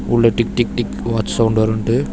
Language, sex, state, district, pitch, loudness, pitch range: Tamil, male, Tamil Nadu, Chennai, 115 Hz, -17 LUFS, 110-115 Hz